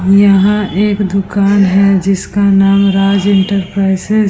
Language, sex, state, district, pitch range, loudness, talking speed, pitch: Hindi, female, Bihar, Vaishali, 195-200 Hz, -11 LUFS, 125 wpm, 195 Hz